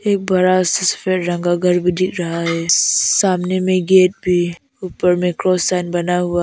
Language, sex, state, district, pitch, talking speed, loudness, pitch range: Hindi, female, Arunachal Pradesh, Papum Pare, 180 Hz, 185 wpm, -16 LUFS, 175-185 Hz